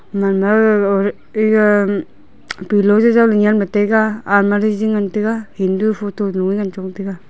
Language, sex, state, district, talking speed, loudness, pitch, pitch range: Wancho, female, Arunachal Pradesh, Longding, 115 wpm, -15 LUFS, 205 Hz, 195-215 Hz